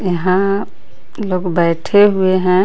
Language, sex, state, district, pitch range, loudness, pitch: Hindi, female, Jharkhand, Garhwa, 180-200 Hz, -15 LUFS, 185 Hz